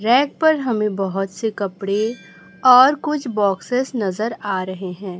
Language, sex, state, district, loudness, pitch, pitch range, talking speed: Hindi, male, Chhattisgarh, Raipur, -19 LUFS, 215 Hz, 195-250 Hz, 150 wpm